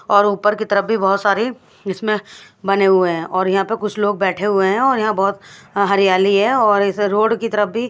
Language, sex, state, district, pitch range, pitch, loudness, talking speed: Hindi, female, Haryana, Charkhi Dadri, 195-215 Hz, 205 Hz, -17 LUFS, 230 wpm